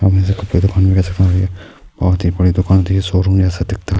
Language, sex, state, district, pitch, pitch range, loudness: Urdu, male, Bihar, Saharsa, 95 Hz, 90-95 Hz, -15 LUFS